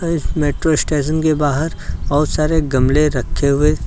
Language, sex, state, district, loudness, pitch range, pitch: Hindi, male, Uttar Pradesh, Lucknow, -17 LUFS, 145-155 Hz, 150 Hz